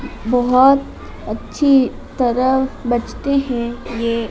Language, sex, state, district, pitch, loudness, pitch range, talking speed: Hindi, male, Madhya Pradesh, Dhar, 255 Hz, -17 LUFS, 240-270 Hz, 85 wpm